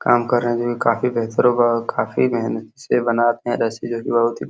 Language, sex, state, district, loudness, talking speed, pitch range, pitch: Hindi, male, Uttar Pradesh, Hamirpur, -19 LUFS, 225 wpm, 115-120 Hz, 120 Hz